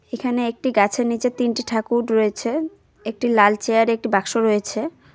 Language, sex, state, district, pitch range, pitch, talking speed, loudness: Bengali, female, West Bengal, Cooch Behar, 215-245 Hz, 235 Hz, 165 wpm, -20 LUFS